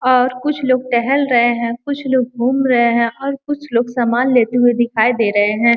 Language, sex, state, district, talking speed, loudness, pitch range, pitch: Hindi, female, Uttar Pradesh, Gorakhpur, 220 wpm, -16 LUFS, 235-260 Hz, 245 Hz